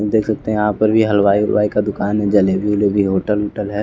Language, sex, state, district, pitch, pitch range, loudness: Hindi, male, Bihar, West Champaran, 105 Hz, 100-105 Hz, -16 LUFS